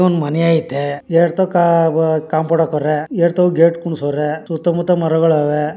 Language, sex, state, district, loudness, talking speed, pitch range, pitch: Kannada, male, Karnataka, Mysore, -15 LUFS, 155 wpm, 150-170 Hz, 165 Hz